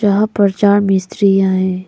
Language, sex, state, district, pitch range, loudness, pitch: Hindi, female, Arunachal Pradesh, Lower Dibang Valley, 190-205 Hz, -13 LUFS, 195 Hz